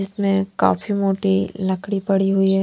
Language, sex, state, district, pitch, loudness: Hindi, female, Haryana, Charkhi Dadri, 195 Hz, -20 LUFS